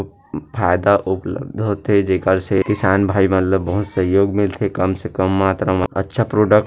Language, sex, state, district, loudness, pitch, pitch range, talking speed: Chhattisgarhi, male, Chhattisgarh, Rajnandgaon, -18 LUFS, 95 Hz, 95-105 Hz, 190 wpm